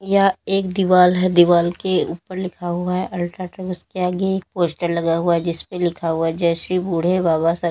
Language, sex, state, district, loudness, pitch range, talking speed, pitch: Hindi, female, Uttar Pradesh, Lalitpur, -19 LUFS, 170-185 Hz, 200 wpm, 180 Hz